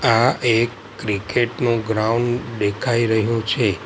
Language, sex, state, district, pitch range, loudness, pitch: Gujarati, male, Gujarat, Valsad, 110-120 Hz, -20 LUFS, 115 Hz